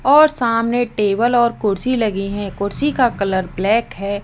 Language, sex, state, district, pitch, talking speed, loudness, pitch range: Hindi, female, Rajasthan, Jaipur, 220 Hz, 170 wpm, -17 LUFS, 200-245 Hz